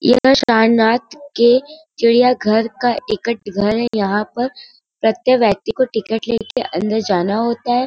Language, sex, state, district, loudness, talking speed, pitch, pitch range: Hindi, female, Uttar Pradesh, Varanasi, -16 LUFS, 150 wpm, 235 Hz, 220-250 Hz